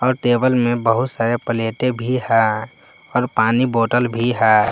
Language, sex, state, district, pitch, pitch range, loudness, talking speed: Hindi, male, Jharkhand, Palamu, 120 Hz, 115-125 Hz, -18 LUFS, 165 wpm